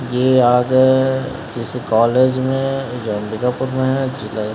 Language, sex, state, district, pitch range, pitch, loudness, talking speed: Hindi, male, Chhattisgarh, Sarguja, 120-130 Hz, 130 Hz, -17 LUFS, 130 wpm